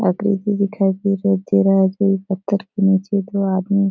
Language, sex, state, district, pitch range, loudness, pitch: Hindi, female, Bihar, Jahanabad, 190-200 Hz, -18 LUFS, 195 Hz